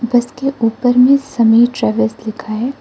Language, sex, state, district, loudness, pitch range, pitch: Hindi, female, Arunachal Pradesh, Lower Dibang Valley, -14 LUFS, 225-250 Hz, 240 Hz